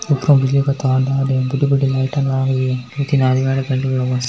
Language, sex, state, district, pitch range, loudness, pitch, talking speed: Hindi, female, Rajasthan, Nagaur, 130-140 Hz, -17 LUFS, 135 Hz, 195 wpm